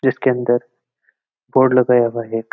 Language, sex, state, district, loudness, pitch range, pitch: Marwari, male, Rajasthan, Nagaur, -17 LUFS, 120-130 Hz, 125 Hz